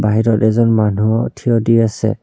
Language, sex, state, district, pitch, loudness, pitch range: Assamese, male, Assam, Kamrup Metropolitan, 110 Hz, -14 LUFS, 110-115 Hz